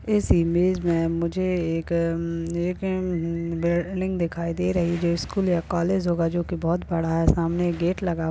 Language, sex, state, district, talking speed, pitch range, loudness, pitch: Hindi, female, Uttarakhand, Tehri Garhwal, 200 wpm, 170-180 Hz, -24 LUFS, 170 Hz